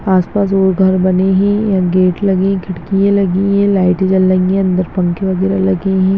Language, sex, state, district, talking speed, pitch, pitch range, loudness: Hindi, female, Bihar, Begusarai, 185 wpm, 190 Hz, 185-195 Hz, -13 LUFS